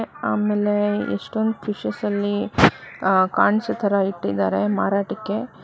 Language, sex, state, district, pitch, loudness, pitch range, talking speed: Kannada, female, Karnataka, Bangalore, 205 Hz, -21 LUFS, 185-210 Hz, 85 wpm